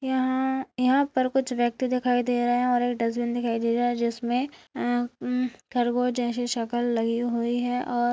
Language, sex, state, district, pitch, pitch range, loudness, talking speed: Hindi, female, Uttarakhand, Tehri Garhwal, 245 Hz, 240-250 Hz, -26 LUFS, 190 wpm